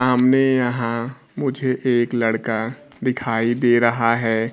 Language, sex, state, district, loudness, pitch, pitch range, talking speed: Hindi, male, Bihar, Kaimur, -20 LUFS, 120 Hz, 115-130 Hz, 120 wpm